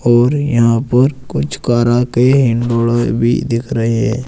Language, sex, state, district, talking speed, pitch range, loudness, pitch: Hindi, male, Uttar Pradesh, Saharanpur, 125 wpm, 115-125 Hz, -14 LUFS, 120 Hz